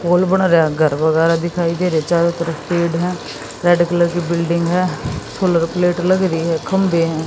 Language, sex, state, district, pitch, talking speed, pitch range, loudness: Hindi, female, Haryana, Jhajjar, 170 Hz, 190 wpm, 165-180 Hz, -17 LUFS